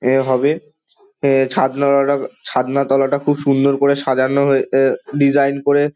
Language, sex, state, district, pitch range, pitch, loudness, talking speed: Bengali, male, West Bengal, Dakshin Dinajpur, 135-145 Hz, 140 Hz, -16 LUFS, 150 wpm